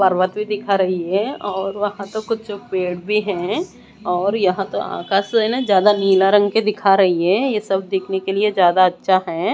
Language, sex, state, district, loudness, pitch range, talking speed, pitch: Hindi, female, Odisha, Malkangiri, -18 LUFS, 190-210 Hz, 205 wpm, 195 Hz